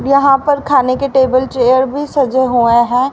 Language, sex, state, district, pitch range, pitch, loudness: Hindi, female, Haryana, Rohtak, 255-275 Hz, 265 Hz, -12 LUFS